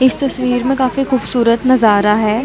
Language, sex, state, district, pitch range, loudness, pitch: Hindi, female, Chhattisgarh, Bilaspur, 230-260 Hz, -14 LUFS, 255 Hz